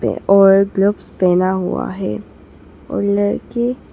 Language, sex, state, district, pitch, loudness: Hindi, female, Arunachal Pradesh, Papum Pare, 195 Hz, -16 LUFS